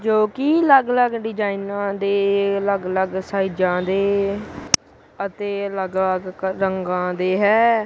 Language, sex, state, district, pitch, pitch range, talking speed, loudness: Punjabi, female, Punjab, Kapurthala, 200 Hz, 190-210 Hz, 120 wpm, -20 LUFS